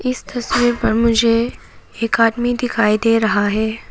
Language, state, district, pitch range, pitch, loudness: Hindi, Arunachal Pradesh, Papum Pare, 220-240 Hz, 230 Hz, -17 LUFS